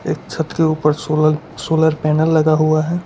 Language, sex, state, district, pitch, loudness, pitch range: Hindi, male, Gujarat, Valsad, 155 Hz, -16 LUFS, 155-160 Hz